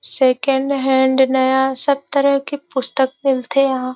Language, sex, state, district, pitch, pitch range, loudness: Chhattisgarhi, female, Chhattisgarh, Rajnandgaon, 265 Hz, 265-275 Hz, -16 LUFS